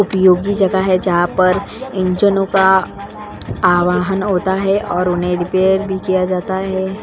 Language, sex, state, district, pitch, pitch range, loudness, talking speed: Hindi, female, Goa, North and South Goa, 190 Hz, 180-195 Hz, -15 LUFS, 145 wpm